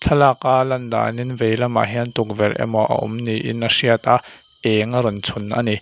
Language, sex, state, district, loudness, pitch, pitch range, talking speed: Mizo, male, Mizoram, Aizawl, -19 LUFS, 115 Hz, 110-120 Hz, 205 wpm